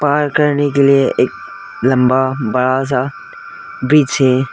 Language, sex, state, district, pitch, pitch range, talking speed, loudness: Hindi, male, Arunachal Pradesh, Lower Dibang Valley, 135 Hz, 130-145 Hz, 130 wpm, -14 LUFS